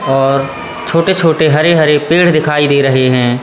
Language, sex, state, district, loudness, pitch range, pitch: Hindi, male, Madhya Pradesh, Katni, -11 LUFS, 135-165 Hz, 150 Hz